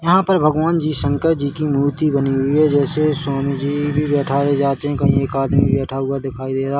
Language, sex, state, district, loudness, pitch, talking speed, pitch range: Hindi, male, Chhattisgarh, Rajnandgaon, -18 LUFS, 140 Hz, 230 wpm, 135-150 Hz